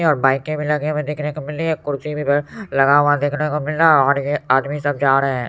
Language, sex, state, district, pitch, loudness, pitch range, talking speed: Hindi, male, Bihar, Supaul, 145 Hz, -18 LUFS, 140-150 Hz, 285 wpm